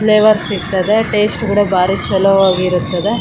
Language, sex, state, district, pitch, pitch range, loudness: Kannada, female, Karnataka, Raichur, 200 Hz, 185-210 Hz, -13 LUFS